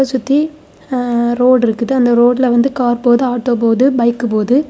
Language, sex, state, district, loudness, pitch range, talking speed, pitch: Tamil, female, Tamil Nadu, Kanyakumari, -13 LUFS, 240-260 Hz, 155 wpm, 245 Hz